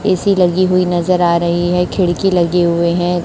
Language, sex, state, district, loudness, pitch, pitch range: Hindi, male, Chhattisgarh, Raipur, -14 LUFS, 175 Hz, 175-185 Hz